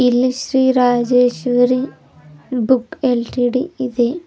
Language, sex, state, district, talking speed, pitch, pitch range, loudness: Kannada, female, Karnataka, Bidar, 110 wpm, 250 Hz, 240-260 Hz, -16 LUFS